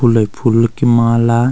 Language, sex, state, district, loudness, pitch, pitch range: Garhwali, male, Uttarakhand, Uttarkashi, -13 LUFS, 115 Hz, 115-120 Hz